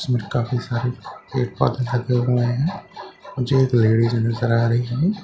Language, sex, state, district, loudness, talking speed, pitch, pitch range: Hindi, male, Bihar, Katihar, -21 LUFS, 170 wpm, 125 Hz, 120-125 Hz